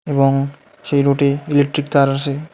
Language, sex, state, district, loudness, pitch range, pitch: Bengali, male, West Bengal, Alipurduar, -17 LUFS, 140-145 Hz, 140 Hz